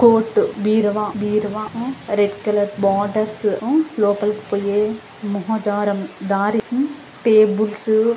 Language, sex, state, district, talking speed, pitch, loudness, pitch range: Telugu, female, Andhra Pradesh, Anantapur, 110 wpm, 210 Hz, -19 LUFS, 205-220 Hz